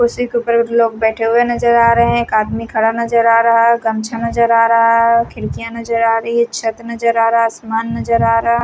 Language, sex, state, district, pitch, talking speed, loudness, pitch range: Hindi, female, Haryana, Rohtak, 230 Hz, 250 wpm, -14 LUFS, 225-235 Hz